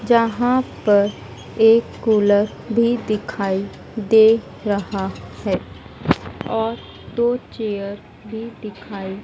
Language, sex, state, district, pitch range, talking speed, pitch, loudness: Hindi, female, Madhya Pradesh, Dhar, 205-230 Hz, 95 wpm, 220 Hz, -19 LUFS